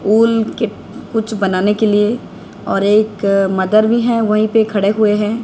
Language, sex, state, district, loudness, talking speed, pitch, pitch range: Hindi, female, Odisha, Sambalpur, -15 LUFS, 175 wpm, 215 Hz, 205-225 Hz